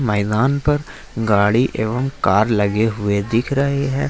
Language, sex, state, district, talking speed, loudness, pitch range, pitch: Hindi, male, Jharkhand, Ranchi, 145 wpm, -18 LUFS, 105-135 Hz, 115 Hz